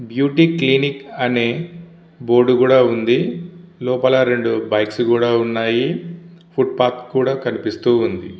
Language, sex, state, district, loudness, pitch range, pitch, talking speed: Telugu, male, Andhra Pradesh, Visakhapatnam, -17 LUFS, 120-140 Hz, 125 Hz, 100 wpm